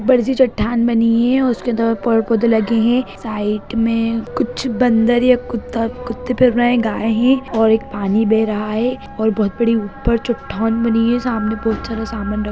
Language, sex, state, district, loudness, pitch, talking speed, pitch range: Hindi, female, Bihar, Jahanabad, -17 LUFS, 230 Hz, 210 wpm, 225-240 Hz